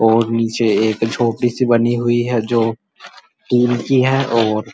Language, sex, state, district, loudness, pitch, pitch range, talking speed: Hindi, male, Uttar Pradesh, Muzaffarnagar, -16 LUFS, 120 Hz, 115-120 Hz, 175 wpm